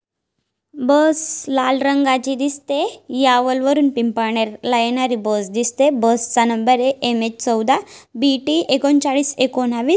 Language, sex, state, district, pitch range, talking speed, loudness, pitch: Marathi, female, Maharashtra, Dhule, 235-280 Hz, 80 wpm, -17 LUFS, 260 Hz